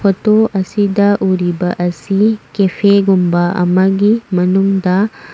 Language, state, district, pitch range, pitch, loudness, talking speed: Manipuri, Manipur, Imphal West, 180-205 Hz, 195 Hz, -13 LUFS, 100 wpm